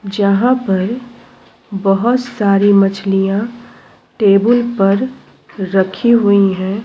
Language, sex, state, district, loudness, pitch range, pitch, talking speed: Hindi, female, Uttar Pradesh, Jyotiba Phule Nagar, -14 LUFS, 195-240 Hz, 200 Hz, 95 wpm